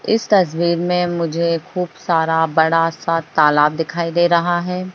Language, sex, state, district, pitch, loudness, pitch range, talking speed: Hindi, female, Bihar, Bhagalpur, 170 Hz, -17 LUFS, 165-175 Hz, 155 wpm